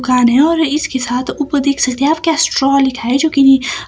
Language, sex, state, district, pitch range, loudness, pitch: Hindi, female, Himachal Pradesh, Shimla, 260-310 Hz, -13 LUFS, 275 Hz